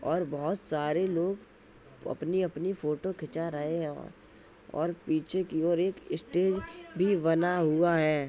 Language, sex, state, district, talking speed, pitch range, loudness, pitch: Hindi, female, Uttar Pradesh, Jalaun, 145 wpm, 155-185 Hz, -30 LUFS, 170 Hz